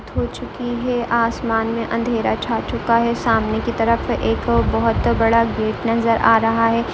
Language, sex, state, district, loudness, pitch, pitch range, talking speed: Hindi, female, Uttar Pradesh, Budaun, -19 LUFS, 230 Hz, 225-235 Hz, 175 wpm